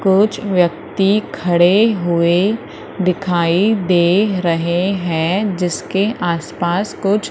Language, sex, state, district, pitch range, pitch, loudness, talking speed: Hindi, female, Madhya Pradesh, Umaria, 175-200 Hz, 185 Hz, -16 LUFS, 90 wpm